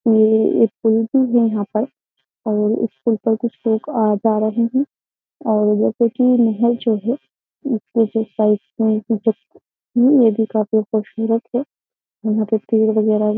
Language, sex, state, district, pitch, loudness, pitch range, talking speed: Hindi, female, Uttar Pradesh, Jyotiba Phule Nagar, 225 Hz, -18 LUFS, 215-235 Hz, 130 wpm